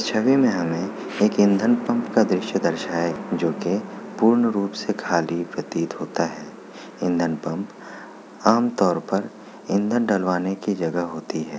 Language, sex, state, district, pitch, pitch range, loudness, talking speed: Hindi, male, Bihar, Kishanganj, 100 Hz, 85-115 Hz, -22 LUFS, 150 wpm